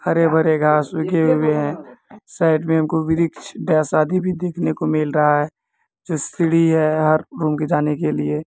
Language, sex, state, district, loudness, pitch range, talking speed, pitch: Maithili, male, Bihar, Kishanganj, -18 LUFS, 150-165 Hz, 175 wpm, 160 Hz